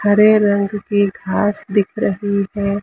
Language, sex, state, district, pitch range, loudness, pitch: Hindi, female, Maharashtra, Mumbai Suburban, 200-205 Hz, -17 LUFS, 205 Hz